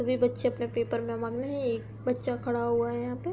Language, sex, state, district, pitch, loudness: Hindi, female, Uttar Pradesh, Hamirpur, 235 Hz, -30 LUFS